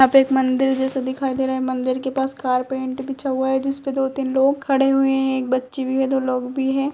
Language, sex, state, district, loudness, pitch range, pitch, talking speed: Hindi, female, Uttar Pradesh, Etah, -20 LUFS, 260-270 Hz, 265 Hz, 270 wpm